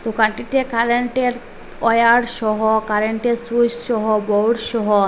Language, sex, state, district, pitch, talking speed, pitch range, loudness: Bengali, female, Assam, Hailakandi, 230 Hz, 120 wpm, 220-240 Hz, -17 LUFS